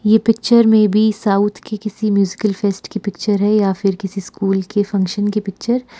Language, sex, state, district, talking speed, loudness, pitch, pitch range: Hindi, female, Himachal Pradesh, Shimla, 200 wpm, -17 LUFS, 205 Hz, 195-215 Hz